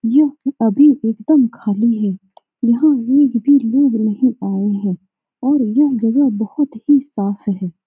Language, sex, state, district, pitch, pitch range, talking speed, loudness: Hindi, female, Bihar, Saran, 235 Hz, 210-280 Hz, 145 wpm, -16 LUFS